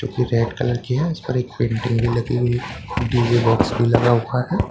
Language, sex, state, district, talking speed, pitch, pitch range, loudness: Hindi, male, Bihar, Katihar, 240 wpm, 120 Hz, 120-125 Hz, -20 LUFS